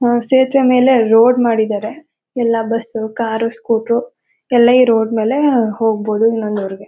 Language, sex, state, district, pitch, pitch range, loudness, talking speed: Kannada, female, Karnataka, Mysore, 230 Hz, 220-250 Hz, -14 LUFS, 120 wpm